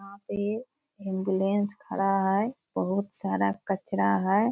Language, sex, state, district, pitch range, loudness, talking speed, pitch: Hindi, female, Bihar, Purnia, 190-205 Hz, -28 LUFS, 120 wpm, 195 Hz